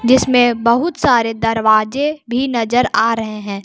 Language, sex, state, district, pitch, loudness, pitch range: Hindi, female, Jharkhand, Palamu, 235 Hz, -15 LUFS, 225-255 Hz